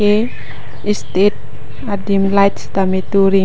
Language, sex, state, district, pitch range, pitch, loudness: Karbi, female, Assam, Karbi Anglong, 120-200 Hz, 195 Hz, -16 LUFS